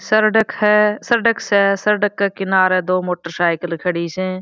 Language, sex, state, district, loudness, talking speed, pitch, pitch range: Marwari, female, Rajasthan, Churu, -17 LUFS, 165 wpm, 195 Hz, 185-210 Hz